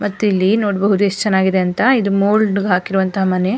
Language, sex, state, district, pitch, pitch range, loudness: Kannada, female, Karnataka, Mysore, 200 Hz, 190-205 Hz, -15 LUFS